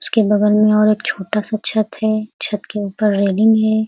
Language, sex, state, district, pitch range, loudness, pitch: Hindi, female, Uttar Pradesh, Ghazipur, 210-220 Hz, -16 LUFS, 215 Hz